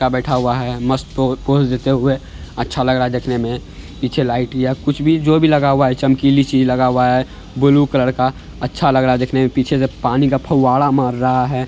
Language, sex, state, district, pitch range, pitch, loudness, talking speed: Hindi, male, Bihar, Araria, 125-135 Hz, 130 Hz, -16 LUFS, 230 wpm